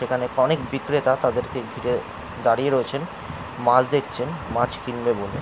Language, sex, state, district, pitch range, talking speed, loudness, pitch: Bengali, male, West Bengal, Jalpaiguri, 120-130 Hz, 135 wpm, -23 LUFS, 125 Hz